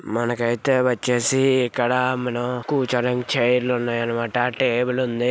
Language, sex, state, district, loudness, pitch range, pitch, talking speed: Telugu, male, Andhra Pradesh, Visakhapatnam, -21 LUFS, 120-125 Hz, 125 Hz, 115 wpm